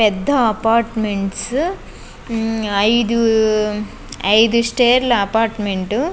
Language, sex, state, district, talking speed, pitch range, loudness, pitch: Telugu, female, Andhra Pradesh, Guntur, 80 wpm, 210-235 Hz, -17 LUFS, 225 Hz